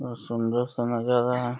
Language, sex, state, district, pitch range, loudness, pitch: Hindi, male, Uttar Pradesh, Deoria, 120-125 Hz, -26 LUFS, 120 Hz